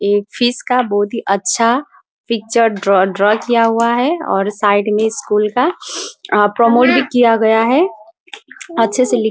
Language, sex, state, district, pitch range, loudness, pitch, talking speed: Hindi, female, Bihar, Muzaffarpur, 210-250 Hz, -14 LUFS, 230 Hz, 175 wpm